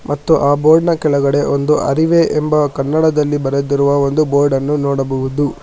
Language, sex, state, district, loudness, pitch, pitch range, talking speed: Kannada, male, Karnataka, Bangalore, -14 LUFS, 145 Hz, 140-155 Hz, 140 wpm